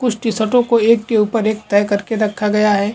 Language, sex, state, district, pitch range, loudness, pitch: Hindi, male, Chhattisgarh, Bilaspur, 210-230 Hz, -16 LUFS, 220 Hz